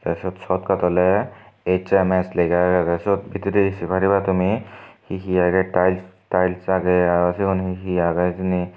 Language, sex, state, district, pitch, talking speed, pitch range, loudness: Chakma, male, Tripura, Dhalai, 95 Hz, 145 wpm, 90-95 Hz, -20 LUFS